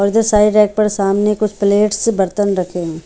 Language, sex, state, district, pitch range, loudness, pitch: Hindi, female, Haryana, Charkhi Dadri, 195-210 Hz, -14 LUFS, 205 Hz